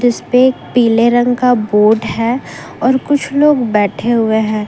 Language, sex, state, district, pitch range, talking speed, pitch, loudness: Hindi, female, Jharkhand, Ranchi, 220-250 Hz, 165 wpm, 240 Hz, -13 LUFS